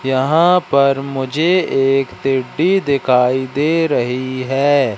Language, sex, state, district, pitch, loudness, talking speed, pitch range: Hindi, male, Madhya Pradesh, Katni, 135 Hz, -15 LUFS, 110 wpm, 130-150 Hz